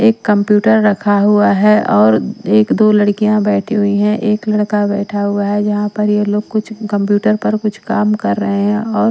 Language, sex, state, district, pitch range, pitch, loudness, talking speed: Hindi, female, Maharashtra, Washim, 205-215 Hz, 210 Hz, -13 LUFS, 210 wpm